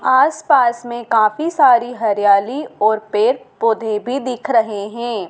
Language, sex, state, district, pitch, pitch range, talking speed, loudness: Hindi, female, Madhya Pradesh, Dhar, 235 Hz, 215-260 Hz, 135 wpm, -16 LUFS